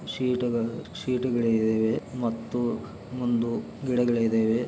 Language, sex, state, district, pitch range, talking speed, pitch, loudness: Kannada, male, Karnataka, Belgaum, 115-125 Hz, 75 wpm, 120 Hz, -27 LUFS